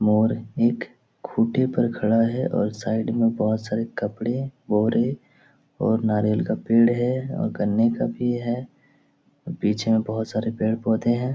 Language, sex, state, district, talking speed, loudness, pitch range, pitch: Hindi, male, Bihar, Jahanabad, 155 wpm, -23 LUFS, 110-120 Hz, 115 Hz